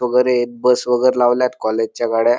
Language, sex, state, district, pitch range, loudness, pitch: Marathi, male, Maharashtra, Dhule, 120-125 Hz, -17 LUFS, 125 Hz